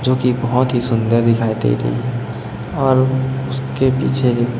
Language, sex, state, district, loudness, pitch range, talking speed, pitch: Hindi, male, Chhattisgarh, Raipur, -17 LUFS, 115-130 Hz, 155 wpm, 125 Hz